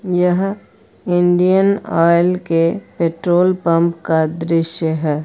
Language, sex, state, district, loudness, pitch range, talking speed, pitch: Hindi, female, Uttar Pradesh, Lucknow, -16 LUFS, 165-180 Hz, 105 wpm, 170 Hz